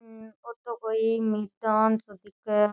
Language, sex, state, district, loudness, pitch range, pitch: Rajasthani, female, Rajasthan, Nagaur, -27 LUFS, 210-225 Hz, 220 Hz